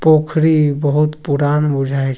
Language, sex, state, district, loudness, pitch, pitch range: Maithili, male, Bihar, Supaul, -15 LUFS, 150 Hz, 140-155 Hz